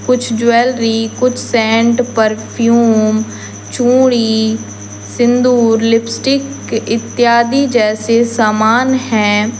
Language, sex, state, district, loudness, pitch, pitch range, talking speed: Hindi, female, Jharkhand, Deoghar, -12 LUFS, 230 Hz, 220-245 Hz, 75 wpm